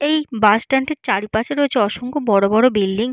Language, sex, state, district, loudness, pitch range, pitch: Bengali, female, West Bengal, Jalpaiguri, -17 LUFS, 210-285 Hz, 230 Hz